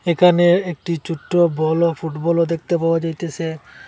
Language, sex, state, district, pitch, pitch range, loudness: Bengali, male, Assam, Hailakandi, 170 Hz, 160-170 Hz, -19 LUFS